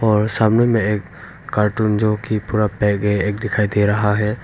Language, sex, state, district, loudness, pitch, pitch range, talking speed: Hindi, male, Arunachal Pradesh, Longding, -18 LUFS, 105 Hz, 105-110 Hz, 190 wpm